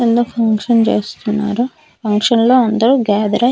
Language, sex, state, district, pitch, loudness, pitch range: Telugu, female, Andhra Pradesh, Manyam, 230 Hz, -14 LUFS, 210-240 Hz